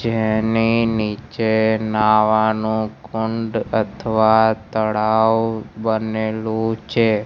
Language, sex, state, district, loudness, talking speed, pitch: Gujarati, male, Gujarat, Gandhinagar, -19 LUFS, 65 wpm, 110 Hz